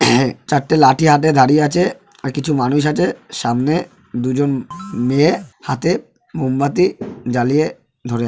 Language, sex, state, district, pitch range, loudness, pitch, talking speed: Bengali, male, West Bengal, Malda, 130-155 Hz, -16 LUFS, 145 Hz, 130 wpm